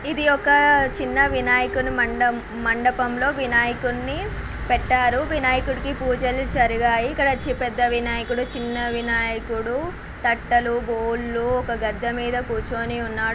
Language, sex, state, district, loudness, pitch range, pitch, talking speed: Telugu, female, Telangana, Nalgonda, -21 LUFS, 235-255 Hz, 245 Hz, 100 wpm